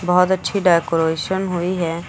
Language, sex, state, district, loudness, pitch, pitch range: Hindi, female, Uttar Pradesh, Lucknow, -18 LUFS, 175 Hz, 165-185 Hz